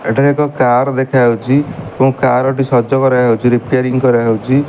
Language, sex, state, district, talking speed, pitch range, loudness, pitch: Odia, male, Odisha, Malkangiri, 130 wpm, 120-135 Hz, -13 LUFS, 130 Hz